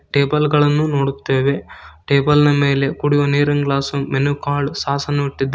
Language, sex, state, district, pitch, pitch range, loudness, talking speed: Kannada, male, Karnataka, Koppal, 140 Hz, 140-145 Hz, -17 LUFS, 160 wpm